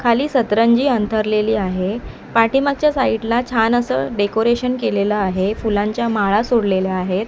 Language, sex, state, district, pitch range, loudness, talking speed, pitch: Marathi, male, Maharashtra, Mumbai Suburban, 205-240 Hz, -17 LUFS, 125 wpm, 220 Hz